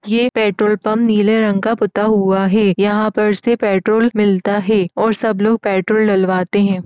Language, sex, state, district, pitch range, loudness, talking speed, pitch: Hindi, female, Uttar Pradesh, Etah, 200-220 Hz, -15 LUFS, 190 wpm, 210 Hz